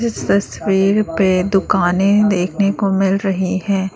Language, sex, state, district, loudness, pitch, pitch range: Hindi, female, Arunachal Pradesh, Lower Dibang Valley, -16 LUFS, 195 Hz, 190-200 Hz